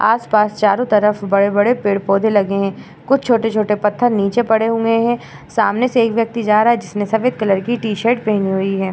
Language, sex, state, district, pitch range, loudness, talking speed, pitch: Hindi, female, Uttar Pradesh, Hamirpur, 205-230 Hz, -16 LUFS, 195 wpm, 215 Hz